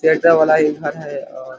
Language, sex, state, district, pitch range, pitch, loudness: Hindi, male, Chhattisgarh, Korba, 145-160 Hz, 155 Hz, -15 LUFS